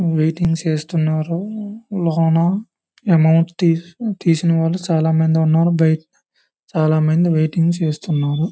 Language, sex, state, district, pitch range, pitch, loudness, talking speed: Telugu, male, Andhra Pradesh, Visakhapatnam, 160-175 Hz, 165 Hz, -17 LUFS, 90 wpm